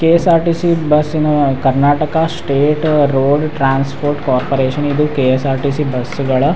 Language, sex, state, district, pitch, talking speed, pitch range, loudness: Kannada, male, Karnataka, Raichur, 145 Hz, 190 wpm, 135-155 Hz, -14 LUFS